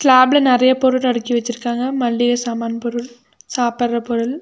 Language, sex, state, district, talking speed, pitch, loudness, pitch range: Tamil, female, Tamil Nadu, Nilgiris, 135 wpm, 240 Hz, -17 LUFS, 235-255 Hz